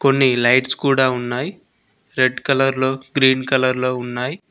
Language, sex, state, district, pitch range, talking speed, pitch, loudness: Telugu, male, Telangana, Mahabubabad, 125-135 Hz, 145 wpm, 130 Hz, -17 LUFS